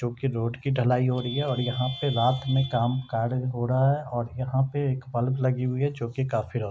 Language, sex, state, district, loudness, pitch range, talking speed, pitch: Hindi, male, Jharkhand, Sahebganj, -26 LUFS, 120-130 Hz, 260 wpm, 125 Hz